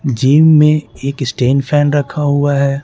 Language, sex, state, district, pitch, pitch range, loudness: Hindi, male, Bihar, Patna, 145 Hz, 135-150 Hz, -13 LUFS